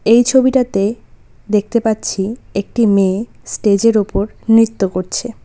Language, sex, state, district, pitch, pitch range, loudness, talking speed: Bengali, female, West Bengal, Cooch Behar, 220 Hz, 200-235 Hz, -15 LUFS, 110 wpm